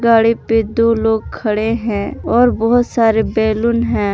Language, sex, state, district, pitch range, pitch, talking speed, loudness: Hindi, male, Jharkhand, Palamu, 220-235 Hz, 225 Hz, 160 wpm, -15 LUFS